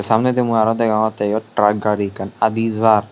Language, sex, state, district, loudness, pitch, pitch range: Chakma, male, Tripura, Unakoti, -17 LUFS, 110 Hz, 105-115 Hz